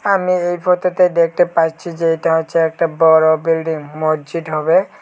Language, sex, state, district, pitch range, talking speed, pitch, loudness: Bengali, male, Tripura, Unakoti, 160-175 Hz, 165 wpm, 165 Hz, -15 LUFS